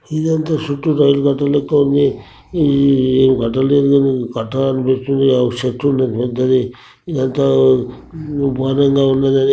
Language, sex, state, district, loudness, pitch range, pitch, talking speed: Telugu, male, Telangana, Nalgonda, -15 LUFS, 130-140 Hz, 135 Hz, 100 wpm